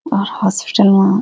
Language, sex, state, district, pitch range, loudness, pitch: Garhwali, female, Uttarakhand, Uttarkashi, 195-210 Hz, -14 LUFS, 200 Hz